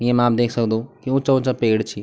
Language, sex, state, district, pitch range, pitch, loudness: Garhwali, male, Uttarakhand, Tehri Garhwal, 110-130 Hz, 120 Hz, -20 LUFS